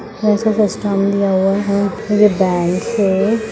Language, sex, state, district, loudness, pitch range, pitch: Hindi, female, Bihar, Lakhisarai, -15 LUFS, 195-215 Hz, 200 Hz